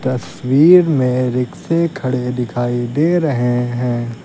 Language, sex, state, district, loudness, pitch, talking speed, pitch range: Hindi, male, Uttar Pradesh, Lucknow, -16 LUFS, 125 Hz, 115 wpm, 120-150 Hz